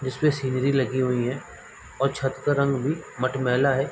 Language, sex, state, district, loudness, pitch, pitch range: Hindi, male, Bihar, Sitamarhi, -24 LUFS, 135 Hz, 130-140 Hz